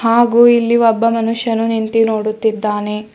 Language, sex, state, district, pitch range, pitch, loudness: Kannada, female, Karnataka, Bidar, 220-230 Hz, 225 Hz, -14 LUFS